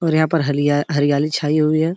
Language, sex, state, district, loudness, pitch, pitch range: Hindi, male, Uttar Pradesh, Etah, -18 LUFS, 155 Hz, 145-155 Hz